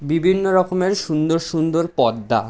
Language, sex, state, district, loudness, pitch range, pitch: Bengali, male, West Bengal, Jhargram, -19 LUFS, 155-185 Hz, 165 Hz